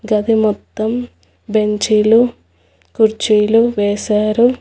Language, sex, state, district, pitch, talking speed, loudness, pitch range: Telugu, female, Telangana, Hyderabad, 215 Hz, 65 wpm, -15 LUFS, 210-225 Hz